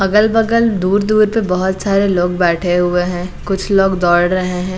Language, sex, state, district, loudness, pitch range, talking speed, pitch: Hindi, female, Bihar, Patna, -14 LUFS, 180-200 Hz, 190 wpm, 190 Hz